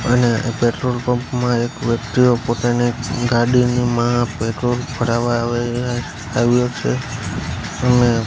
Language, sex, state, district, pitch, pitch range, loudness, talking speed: Gujarati, male, Gujarat, Gandhinagar, 120 Hz, 120-125 Hz, -18 LUFS, 100 wpm